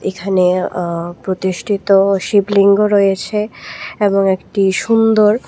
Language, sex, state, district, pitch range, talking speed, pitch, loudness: Bengali, female, Tripura, West Tripura, 190-205 Hz, 90 wpm, 195 Hz, -14 LUFS